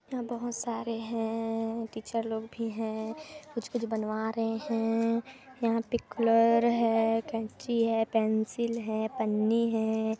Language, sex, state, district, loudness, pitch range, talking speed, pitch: Hindi, female, Chhattisgarh, Kabirdham, -30 LUFS, 225-230 Hz, 125 wpm, 225 Hz